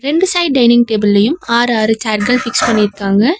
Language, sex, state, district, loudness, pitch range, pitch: Tamil, female, Tamil Nadu, Nilgiris, -12 LUFS, 215-260 Hz, 230 Hz